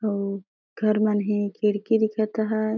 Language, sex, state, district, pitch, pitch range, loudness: Surgujia, female, Chhattisgarh, Sarguja, 215 Hz, 205-220 Hz, -24 LUFS